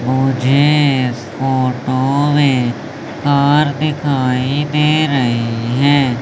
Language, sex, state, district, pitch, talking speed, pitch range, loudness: Hindi, male, Madhya Pradesh, Umaria, 135 Hz, 75 wpm, 130-145 Hz, -15 LUFS